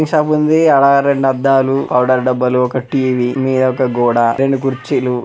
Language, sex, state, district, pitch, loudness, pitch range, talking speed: Telugu, male, Telangana, Karimnagar, 130 Hz, -13 LUFS, 125-135 Hz, 170 wpm